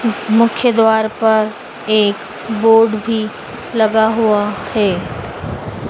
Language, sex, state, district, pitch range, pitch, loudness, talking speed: Hindi, female, Madhya Pradesh, Dhar, 215-225 Hz, 220 Hz, -15 LUFS, 90 wpm